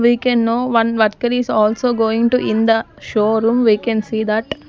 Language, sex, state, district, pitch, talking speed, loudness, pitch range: English, female, Punjab, Kapurthala, 225 Hz, 205 wpm, -16 LUFS, 220-240 Hz